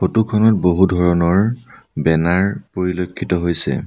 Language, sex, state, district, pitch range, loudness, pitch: Assamese, male, Assam, Sonitpur, 85-105 Hz, -17 LUFS, 90 Hz